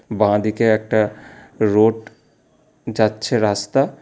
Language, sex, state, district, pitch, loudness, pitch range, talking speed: Bengali, male, West Bengal, Alipurduar, 110 Hz, -18 LUFS, 105-115 Hz, 75 wpm